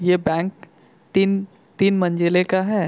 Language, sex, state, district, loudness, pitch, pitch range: Hindi, male, Jharkhand, Sahebganj, -20 LUFS, 185 Hz, 175-195 Hz